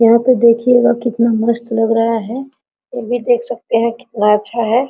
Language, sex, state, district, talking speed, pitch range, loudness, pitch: Hindi, female, Jharkhand, Sahebganj, 195 wpm, 230-245 Hz, -14 LUFS, 235 Hz